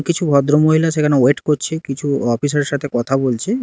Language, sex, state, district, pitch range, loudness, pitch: Bengali, male, Karnataka, Bangalore, 135-155 Hz, -16 LUFS, 145 Hz